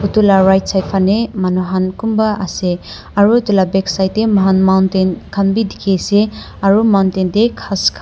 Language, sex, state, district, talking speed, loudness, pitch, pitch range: Nagamese, female, Nagaland, Dimapur, 180 wpm, -14 LUFS, 195 Hz, 190-205 Hz